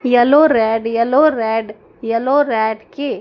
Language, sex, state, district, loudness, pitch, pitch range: Hindi, female, Madhya Pradesh, Dhar, -15 LUFS, 230 Hz, 225-280 Hz